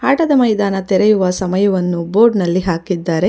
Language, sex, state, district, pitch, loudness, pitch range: Kannada, female, Karnataka, Bangalore, 190 Hz, -15 LUFS, 180-215 Hz